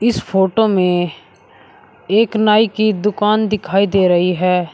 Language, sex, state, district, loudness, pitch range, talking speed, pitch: Hindi, male, Uttar Pradesh, Shamli, -15 LUFS, 180-215 Hz, 140 wpm, 200 Hz